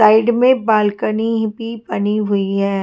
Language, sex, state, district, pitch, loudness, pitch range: Hindi, female, Haryana, Charkhi Dadri, 215 Hz, -16 LUFS, 205-230 Hz